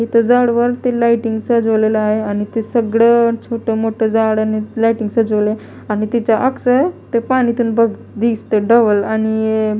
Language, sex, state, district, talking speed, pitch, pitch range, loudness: Marathi, female, Maharashtra, Mumbai Suburban, 155 wpm, 225 Hz, 220-235 Hz, -15 LUFS